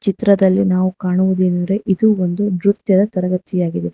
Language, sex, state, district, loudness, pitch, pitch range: Kannada, female, Karnataka, Bangalore, -16 LUFS, 190 Hz, 185-200 Hz